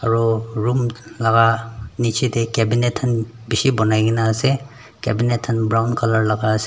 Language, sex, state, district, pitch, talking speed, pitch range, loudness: Nagamese, male, Nagaland, Dimapur, 115 Hz, 155 wpm, 110-120 Hz, -19 LUFS